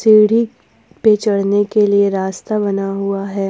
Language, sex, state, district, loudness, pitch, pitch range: Hindi, female, Jharkhand, Ranchi, -15 LUFS, 205 Hz, 195-215 Hz